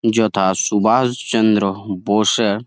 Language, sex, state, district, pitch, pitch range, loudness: Bengali, male, West Bengal, Jalpaiguri, 105 Hz, 100-110 Hz, -17 LUFS